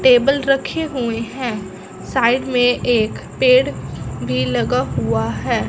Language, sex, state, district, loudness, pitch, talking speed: Hindi, female, Punjab, Fazilka, -18 LUFS, 230 Hz, 125 wpm